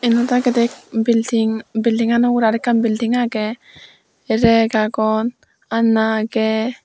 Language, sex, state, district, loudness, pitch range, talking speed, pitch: Chakma, female, Tripura, Dhalai, -17 LUFS, 220-235 Hz, 115 wpm, 230 Hz